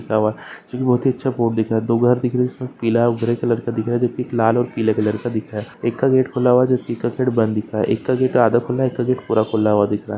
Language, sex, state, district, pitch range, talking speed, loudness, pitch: Hindi, male, Maharashtra, Solapur, 110-125 Hz, 265 wpm, -19 LUFS, 120 Hz